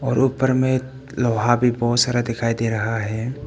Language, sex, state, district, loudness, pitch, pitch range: Hindi, male, Arunachal Pradesh, Papum Pare, -20 LUFS, 120 Hz, 115-130 Hz